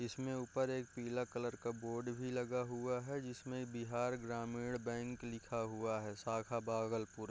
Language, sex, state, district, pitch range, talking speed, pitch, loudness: Hindi, male, Bihar, Bhagalpur, 115-125 Hz, 165 wpm, 120 Hz, -42 LUFS